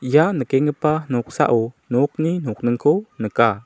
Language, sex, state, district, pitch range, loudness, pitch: Garo, male, Meghalaya, South Garo Hills, 120-155 Hz, -20 LUFS, 140 Hz